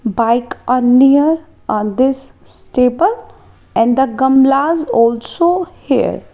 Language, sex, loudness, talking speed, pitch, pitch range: English, female, -14 LUFS, 105 wpm, 265 Hz, 235-315 Hz